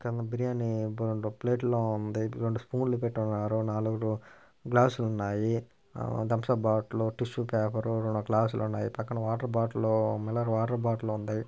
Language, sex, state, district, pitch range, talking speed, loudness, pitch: Telugu, male, Telangana, Karimnagar, 110-120 Hz, 155 wpm, -30 LUFS, 110 Hz